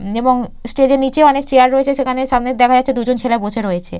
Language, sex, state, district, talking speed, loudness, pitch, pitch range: Bengali, female, West Bengal, Purulia, 225 wpm, -14 LUFS, 255 Hz, 235-270 Hz